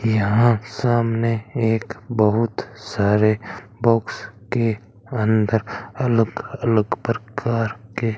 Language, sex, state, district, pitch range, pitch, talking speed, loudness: Hindi, male, Rajasthan, Bikaner, 110-115 Hz, 115 Hz, 95 wpm, -21 LUFS